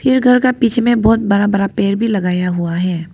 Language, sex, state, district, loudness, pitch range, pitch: Hindi, female, Arunachal Pradesh, Papum Pare, -14 LUFS, 180-240 Hz, 205 Hz